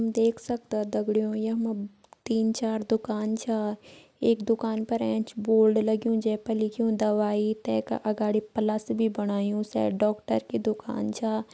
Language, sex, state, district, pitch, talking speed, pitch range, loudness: Garhwali, female, Uttarakhand, Uttarkashi, 220 Hz, 155 wpm, 210-225 Hz, -27 LUFS